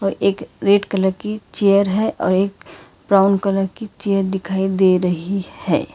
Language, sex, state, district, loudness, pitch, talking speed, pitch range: Hindi, female, Karnataka, Bangalore, -18 LUFS, 195 Hz, 160 wpm, 190-200 Hz